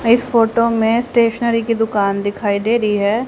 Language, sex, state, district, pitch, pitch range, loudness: Hindi, female, Haryana, Jhajjar, 230 Hz, 210-235 Hz, -16 LUFS